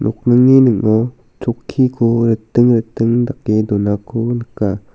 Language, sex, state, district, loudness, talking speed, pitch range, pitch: Garo, male, Meghalaya, South Garo Hills, -15 LUFS, 95 wpm, 110-120 Hz, 115 Hz